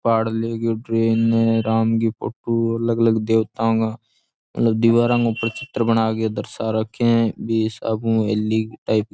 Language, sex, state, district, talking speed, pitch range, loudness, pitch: Rajasthani, male, Rajasthan, Churu, 175 wpm, 110-115 Hz, -20 LUFS, 115 Hz